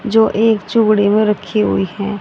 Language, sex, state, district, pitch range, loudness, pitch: Hindi, female, Haryana, Rohtak, 205-220 Hz, -14 LUFS, 215 Hz